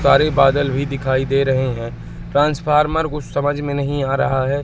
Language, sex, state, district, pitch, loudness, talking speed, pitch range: Hindi, male, Madhya Pradesh, Katni, 140 Hz, -18 LUFS, 195 wpm, 135-145 Hz